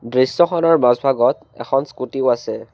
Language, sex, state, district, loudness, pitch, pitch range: Assamese, male, Assam, Kamrup Metropolitan, -17 LUFS, 135 Hz, 125-155 Hz